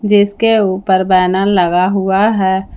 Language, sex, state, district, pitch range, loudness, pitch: Hindi, female, Jharkhand, Palamu, 185-205 Hz, -12 LUFS, 190 Hz